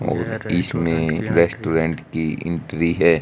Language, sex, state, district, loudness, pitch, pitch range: Hindi, male, Haryana, Rohtak, -21 LUFS, 85 Hz, 80-85 Hz